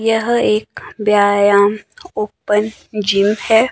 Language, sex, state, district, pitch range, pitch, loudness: Hindi, male, Himachal Pradesh, Shimla, 205-225 Hz, 210 Hz, -15 LUFS